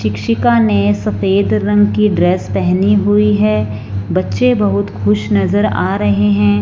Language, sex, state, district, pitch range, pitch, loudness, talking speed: Hindi, female, Punjab, Fazilka, 100-105 Hz, 105 Hz, -13 LUFS, 145 wpm